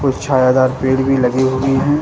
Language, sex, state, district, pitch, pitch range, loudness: Hindi, male, Bihar, Samastipur, 130 Hz, 130-135 Hz, -14 LUFS